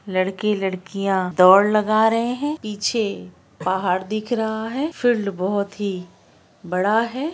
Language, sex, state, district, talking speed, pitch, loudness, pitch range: Hindi, female, Bihar, Araria, 140 wpm, 205 Hz, -21 LUFS, 185-225 Hz